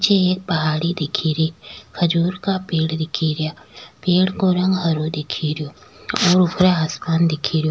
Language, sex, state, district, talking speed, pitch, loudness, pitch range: Rajasthani, female, Rajasthan, Nagaur, 155 wpm, 170 Hz, -19 LUFS, 155-185 Hz